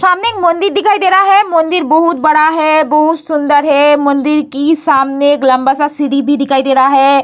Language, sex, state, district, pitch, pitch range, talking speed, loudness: Hindi, female, Bihar, Vaishali, 300 Hz, 280-335 Hz, 205 wpm, -10 LUFS